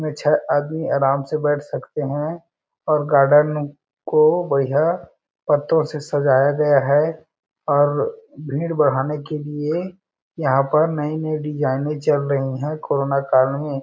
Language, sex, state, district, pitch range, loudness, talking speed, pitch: Hindi, male, Chhattisgarh, Balrampur, 140-155 Hz, -20 LUFS, 140 wpm, 150 Hz